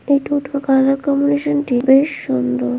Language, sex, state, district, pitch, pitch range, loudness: Bengali, female, West Bengal, Kolkata, 275 Hz, 250-285 Hz, -16 LUFS